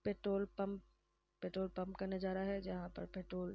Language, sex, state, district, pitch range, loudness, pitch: Hindi, female, Uttar Pradesh, Varanasi, 185-200 Hz, -43 LUFS, 190 Hz